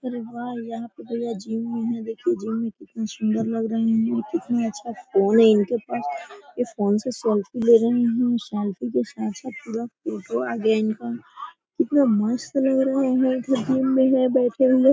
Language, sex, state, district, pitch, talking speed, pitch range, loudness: Hindi, female, Jharkhand, Sahebganj, 235 Hz, 195 wpm, 225-260 Hz, -23 LUFS